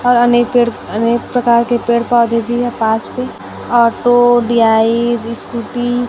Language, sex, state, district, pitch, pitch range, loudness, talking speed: Hindi, female, Chhattisgarh, Raipur, 240 Hz, 230-245 Hz, -13 LUFS, 155 wpm